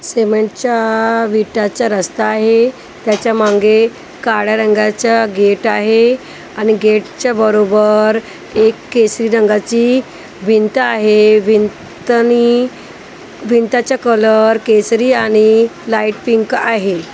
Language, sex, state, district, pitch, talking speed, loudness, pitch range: Marathi, female, Maharashtra, Gondia, 220 Hz, 90 wpm, -12 LUFS, 215-235 Hz